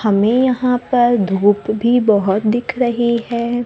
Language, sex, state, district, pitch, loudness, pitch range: Hindi, female, Maharashtra, Gondia, 235 Hz, -15 LUFS, 210-245 Hz